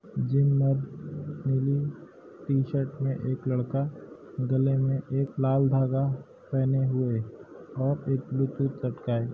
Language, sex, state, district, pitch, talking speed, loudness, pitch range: Hindi, male, Uttar Pradesh, Hamirpur, 135 Hz, 120 wpm, -28 LUFS, 130-140 Hz